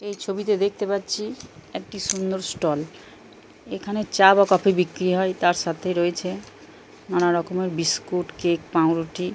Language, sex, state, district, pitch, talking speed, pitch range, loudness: Bengali, male, Jharkhand, Jamtara, 185 Hz, 135 wpm, 175-200 Hz, -22 LUFS